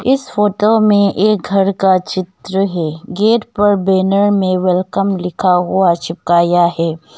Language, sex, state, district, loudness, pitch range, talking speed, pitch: Hindi, female, Arunachal Pradesh, Longding, -14 LUFS, 180-205 Hz, 140 wpm, 190 Hz